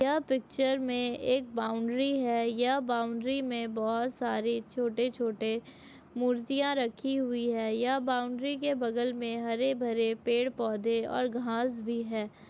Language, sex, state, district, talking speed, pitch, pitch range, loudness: Hindi, female, Chhattisgarh, Bastar, 145 wpm, 240 Hz, 230-260 Hz, -31 LUFS